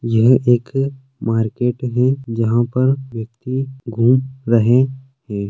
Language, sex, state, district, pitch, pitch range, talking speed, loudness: Hindi, male, Maharashtra, Sindhudurg, 125 Hz, 115-130 Hz, 110 wpm, -17 LUFS